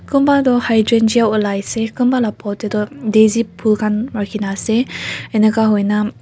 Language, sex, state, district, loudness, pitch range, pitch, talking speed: Nagamese, female, Nagaland, Kohima, -16 LUFS, 210-230 Hz, 220 Hz, 195 wpm